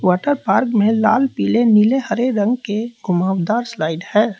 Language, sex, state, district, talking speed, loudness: Hindi, male, Uttar Pradesh, Lalitpur, 165 wpm, -17 LUFS